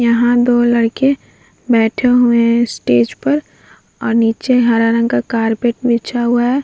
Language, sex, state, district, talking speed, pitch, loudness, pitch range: Hindi, female, Bihar, Vaishali, 155 wpm, 235 Hz, -14 LUFS, 230-245 Hz